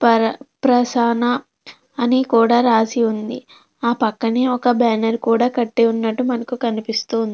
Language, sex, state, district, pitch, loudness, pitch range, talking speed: Telugu, female, Andhra Pradesh, Krishna, 235 Hz, -18 LUFS, 230-245 Hz, 125 wpm